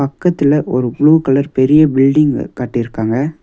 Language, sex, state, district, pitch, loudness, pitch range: Tamil, male, Tamil Nadu, Nilgiris, 140 Hz, -13 LUFS, 125-150 Hz